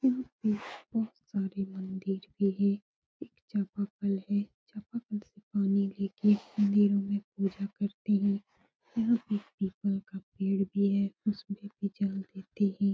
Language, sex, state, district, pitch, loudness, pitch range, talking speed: Hindi, female, Bihar, Supaul, 200 Hz, -32 LUFS, 195-205 Hz, 155 wpm